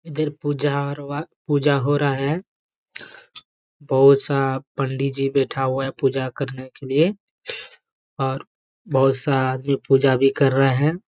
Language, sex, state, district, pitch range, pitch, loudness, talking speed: Hindi, male, Bihar, Jamui, 135-145 Hz, 140 Hz, -21 LUFS, 145 wpm